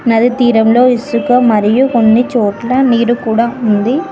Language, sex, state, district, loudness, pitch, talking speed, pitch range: Telugu, female, Telangana, Mahabubabad, -11 LUFS, 235 Hz, 130 wpm, 225-250 Hz